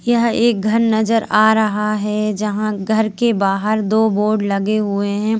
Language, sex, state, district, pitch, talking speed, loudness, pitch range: Hindi, female, Madhya Pradesh, Bhopal, 215 Hz, 180 wpm, -17 LUFS, 210-220 Hz